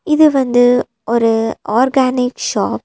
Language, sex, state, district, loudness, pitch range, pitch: Tamil, female, Tamil Nadu, Nilgiris, -14 LUFS, 235-265 Hz, 245 Hz